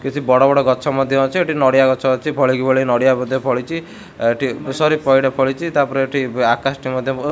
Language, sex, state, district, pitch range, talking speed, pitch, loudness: Odia, male, Odisha, Khordha, 130-140 Hz, 220 wpm, 135 Hz, -16 LUFS